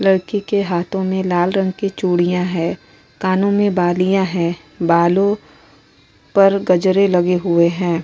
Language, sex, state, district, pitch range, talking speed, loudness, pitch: Hindi, female, Uttar Pradesh, Muzaffarnagar, 175-195 Hz, 140 wpm, -17 LUFS, 185 Hz